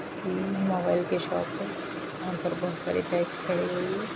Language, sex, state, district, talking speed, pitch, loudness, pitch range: Hindi, female, Bihar, Sitamarhi, 185 wpm, 180 Hz, -30 LUFS, 175-180 Hz